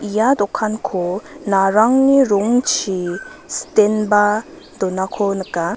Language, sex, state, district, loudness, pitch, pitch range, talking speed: Garo, female, Meghalaya, West Garo Hills, -17 LUFS, 205 Hz, 195-220 Hz, 75 wpm